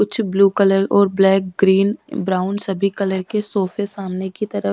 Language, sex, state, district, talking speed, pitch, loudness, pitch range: Hindi, female, Bihar, Katihar, 180 wpm, 195 Hz, -18 LUFS, 190-205 Hz